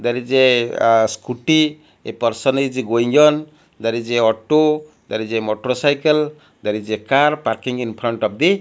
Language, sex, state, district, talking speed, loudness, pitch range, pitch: English, male, Odisha, Malkangiri, 180 wpm, -18 LUFS, 115-150 Hz, 125 Hz